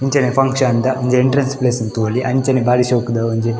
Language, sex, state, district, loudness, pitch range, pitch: Tulu, male, Karnataka, Dakshina Kannada, -16 LUFS, 120-130 Hz, 125 Hz